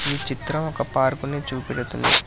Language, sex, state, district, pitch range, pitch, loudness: Telugu, male, Telangana, Hyderabad, 130-145 Hz, 140 Hz, -23 LUFS